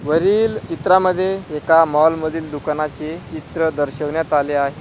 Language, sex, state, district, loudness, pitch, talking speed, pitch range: Marathi, male, Maharashtra, Pune, -18 LUFS, 160 Hz, 125 wpm, 150-165 Hz